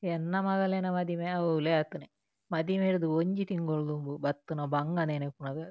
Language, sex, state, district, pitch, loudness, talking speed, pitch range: Tulu, female, Karnataka, Dakshina Kannada, 165 Hz, -31 LUFS, 125 wpm, 145-180 Hz